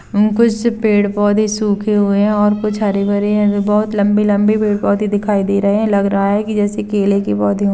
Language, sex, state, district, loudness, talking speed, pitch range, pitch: Hindi, female, Chhattisgarh, Kabirdham, -15 LUFS, 200 wpm, 200-210 Hz, 205 Hz